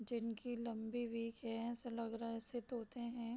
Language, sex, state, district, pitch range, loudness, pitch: Hindi, female, Bihar, Sitamarhi, 230-240 Hz, -43 LUFS, 235 Hz